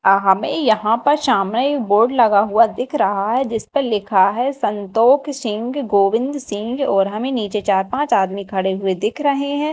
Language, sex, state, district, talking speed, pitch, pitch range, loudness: Hindi, female, Madhya Pradesh, Dhar, 185 wpm, 225 Hz, 200-265 Hz, -18 LUFS